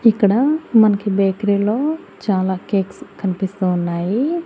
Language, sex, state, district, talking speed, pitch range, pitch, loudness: Telugu, female, Andhra Pradesh, Annamaya, 110 wpm, 190-230 Hz, 200 Hz, -18 LUFS